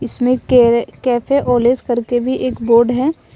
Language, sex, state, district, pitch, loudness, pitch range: Hindi, female, Jharkhand, Ranchi, 245 Hz, -15 LUFS, 240-255 Hz